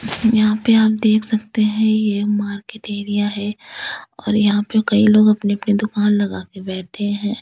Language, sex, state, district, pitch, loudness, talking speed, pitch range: Hindi, female, Delhi, New Delhi, 210 Hz, -18 LUFS, 170 wpm, 205-220 Hz